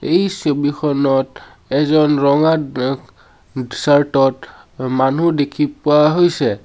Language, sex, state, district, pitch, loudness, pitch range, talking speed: Assamese, male, Assam, Sonitpur, 145 Hz, -16 LUFS, 135-150 Hz, 100 wpm